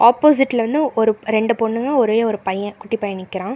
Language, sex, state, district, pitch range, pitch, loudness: Tamil, female, Karnataka, Bangalore, 210-250 Hz, 225 Hz, -18 LUFS